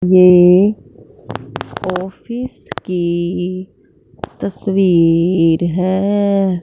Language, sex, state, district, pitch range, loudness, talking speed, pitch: Hindi, female, Punjab, Fazilka, 175-195 Hz, -14 LUFS, 45 wpm, 185 Hz